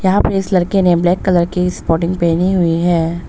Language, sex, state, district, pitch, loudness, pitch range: Hindi, female, Arunachal Pradesh, Papum Pare, 175 Hz, -14 LUFS, 170-185 Hz